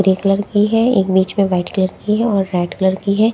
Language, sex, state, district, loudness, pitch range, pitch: Hindi, female, Punjab, Kapurthala, -16 LUFS, 190-205 Hz, 195 Hz